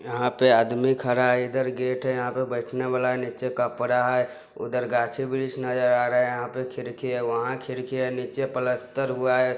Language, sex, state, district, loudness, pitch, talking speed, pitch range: Bajjika, male, Bihar, Vaishali, -25 LUFS, 125 Hz, 200 wpm, 125-130 Hz